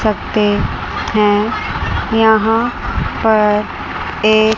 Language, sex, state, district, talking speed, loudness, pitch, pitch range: Hindi, female, Chandigarh, Chandigarh, 65 wpm, -15 LUFS, 215 Hz, 210-220 Hz